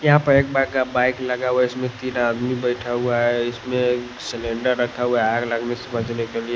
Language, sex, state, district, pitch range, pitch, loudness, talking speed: Hindi, male, Odisha, Nuapada, 120-125 Hz, 125 Hz, -21 LUFS, 210 wpm